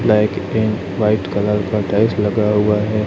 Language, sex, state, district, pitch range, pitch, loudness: Hindi, male, Chhattisgarh, Raipur, 105-110 Hz, 105 Hz, -17 LUFS